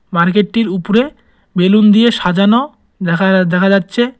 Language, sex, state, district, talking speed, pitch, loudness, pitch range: Bengali, male, West Bengal, Cooch Behar, 115 wpm, 200 Hz, -12 LUFS, 185-230 Hz